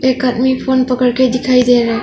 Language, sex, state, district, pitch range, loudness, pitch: Hindi, female, Arunachal Pradesh, Longding, 250-260 Hz, -13 LUFS, 255 Hz